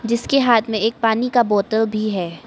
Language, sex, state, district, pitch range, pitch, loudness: Hindi, male, Arunachal Pradesh, Papum Pare, 215-235 Hz, 225 Hz, -18 LUFS